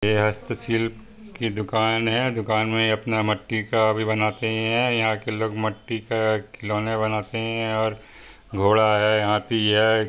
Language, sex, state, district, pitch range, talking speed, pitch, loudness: Hindi, male, Chhattisgarh, Bastar, 110-115 Hz, 160 wpm, 110 Hz, -23 LUFS